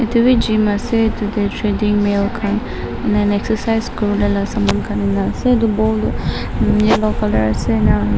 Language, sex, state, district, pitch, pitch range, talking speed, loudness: Nagamese, female, Nagaland, Dimapur, 210 Hz, 200-220 Hz, 185 wpm, -17 LUFS